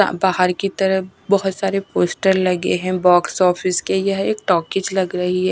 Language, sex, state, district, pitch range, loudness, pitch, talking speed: Hindi, female, Odisha, Nuapada, 180-195 Hz, -18 LUFS, 185 Hz, 185 wpm